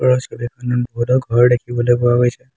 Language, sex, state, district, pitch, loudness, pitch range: Assamese, male, Assam, Hailakandi, 120 Hz, -16 LUFS, 120-125 Hz